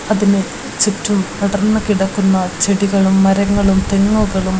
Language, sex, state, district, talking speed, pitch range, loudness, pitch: Malayalam, female, Kerala, Kozhikode, 90 wpm, 190-205 Hz, -15 LUFS, 200 Hz